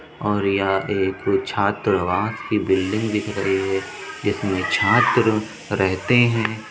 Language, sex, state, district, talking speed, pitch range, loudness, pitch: Hindi, male, Uttar Pradesh, Budaun, 115 wpm, 95-110 Hz, -20 LUFS, 105 Hz